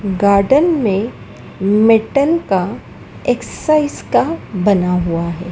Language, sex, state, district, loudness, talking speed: Hindi, female, Madhya Pradesh, Dhar, -15 LUFS, 100 wpm